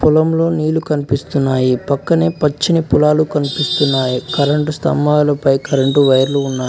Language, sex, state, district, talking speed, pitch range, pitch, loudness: Telugu, male, Telangana, Mahabubabad, 115 wpm, 135-155 Hz, 145 Hz, -15 LUFS